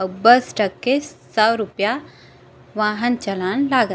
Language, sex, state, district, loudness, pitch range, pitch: Chhattisgarhi, female, Chhattisgarh, Raigarh, -19 LUFS, 200-245 Hz, 220 Hz